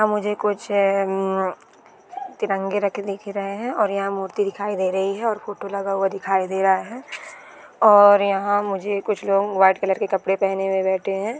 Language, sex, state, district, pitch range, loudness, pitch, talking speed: Hindi, female, Bihar, East Champaran, 195-205 Hz, -21 LUFS, 200 Hz, 180 wpm